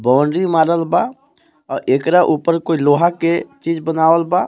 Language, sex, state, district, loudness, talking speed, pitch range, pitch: Bhojpuri, male, Jharkhand, Palamu, -16 LUFS, 160 wpm, 160-175 Hz, 165 Hz